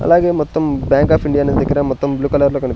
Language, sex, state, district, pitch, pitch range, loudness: Telugu, male, Andhra Pradesh, Sri Satya Sai, 140 Hz, 140-150 Hz, -15 LUFS